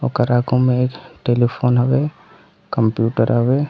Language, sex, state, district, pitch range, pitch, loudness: Chhattisgarhi, male, Chhattisgarh, Raigarh, 120-125 Hz, 125 Hz, -18 LUFS